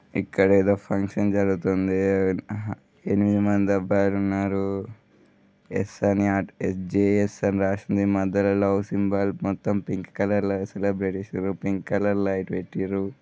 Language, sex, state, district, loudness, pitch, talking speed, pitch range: Telugu, male, Telangana, Nalgonda, -24 LUFS, 100 Hz, 135 wpm, 95-100 Hz